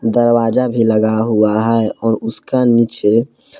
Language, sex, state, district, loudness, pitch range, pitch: Hindi, male, Jharkhand, Palamu, -14 LUFS, 110-120 Hz, 115 Hz